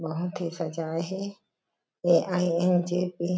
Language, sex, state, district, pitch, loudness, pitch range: Chhattisgarhi, female, Chhattisgarh, Jashpur, 175 Hz, -27 LUFS, 165-180 Hz